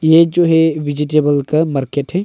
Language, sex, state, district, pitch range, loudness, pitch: Hindi, male, Arunachal Pradesh, Longding, 145-165 Hz, -14 LUFS, 155 Hz